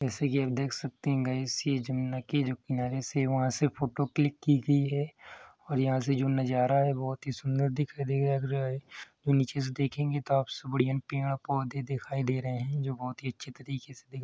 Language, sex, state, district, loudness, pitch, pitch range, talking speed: Hindi, male, Uttar Pradesh, Hamirpur, -31 LUFS, 135 Hz, 130-140 Hz, 215 wpm